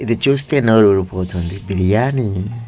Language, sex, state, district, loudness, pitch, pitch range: Telugu, male, Andhra Pradesh, Manyam, -16 LUFS, 110 Hz, 95-125 Hz